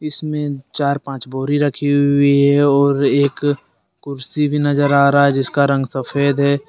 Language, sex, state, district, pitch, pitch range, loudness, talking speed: Hindi, male, Jharkhand, Deoghar, 140 Hz, 140-145 Hz, -16 LUFS, 180 wpm